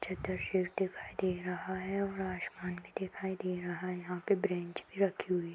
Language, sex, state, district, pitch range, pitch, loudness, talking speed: Hindi, female, Uttar Pradesh, Budaun, 180-190 Hz, 185 Hz, -36 LUFS, 215 wpm